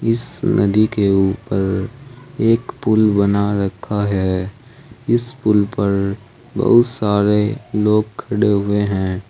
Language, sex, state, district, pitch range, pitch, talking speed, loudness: Hindi, male, Uttar Pradesh, Saharanpur, 100-115 Hz, 105 Hz, 125 wpm, -17 LUFS